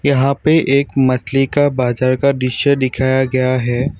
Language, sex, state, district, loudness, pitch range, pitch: Hindi, male, Assam, Kamrup Metropolitan, -15 LUFS, 130-140 Hz, 130 Hz